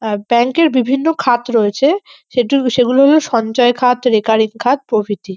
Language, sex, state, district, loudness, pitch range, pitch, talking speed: Bengali, female, West Bengal, North 24 Parganas, -14 LUFS, 220-270 Hz, 245 Hz, 145 wpm